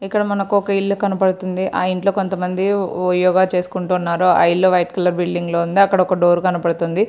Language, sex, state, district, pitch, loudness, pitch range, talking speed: Telugu, female, Andhra Pradesh, Srikakulam, 185 Hz, -17 LUFS, 180-195 Hz, 180 wpm